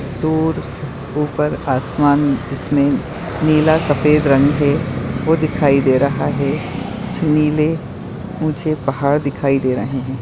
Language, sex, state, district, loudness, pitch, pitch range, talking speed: Hindi, female, Maharashtra, Nagpur, -17 LUFS, 145 Hz, 135-155 Hz, 130 wpm